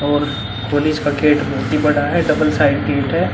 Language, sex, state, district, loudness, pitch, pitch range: Hindi, male, Bihar, Vaishali, -17 LUFS, 145 Hz, 140-150 Hz